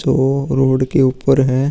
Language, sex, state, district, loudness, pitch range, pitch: Hindi, male, Uttar Pradesh, Muzaffarnagar, -15 LUFS, 130-135 Hz, 135 Hz